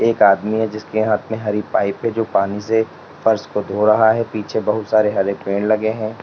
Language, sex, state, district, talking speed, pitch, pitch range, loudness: Hindi, male, Uttar Pradesh, Lalitpur, 240 wpm, 110 Hz, 105-110 Hz, -18 LUFS